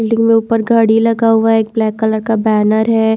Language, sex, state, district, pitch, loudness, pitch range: Hindi, female, Haryana, Charkhi Dadri, 225 Hz, -13 LUFS, 220-225 Hz